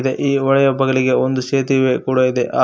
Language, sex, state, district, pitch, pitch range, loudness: Kannada, male, Karnataka, Koppal, 130 Hz, 130-135 Hz, -16 LUFS